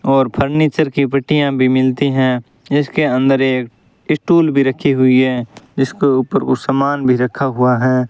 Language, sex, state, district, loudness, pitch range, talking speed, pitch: Hindi, male, Rajasthan, Bikaner, -15 LUFS, 130-140 Hz, 170 wpm, 135 Hz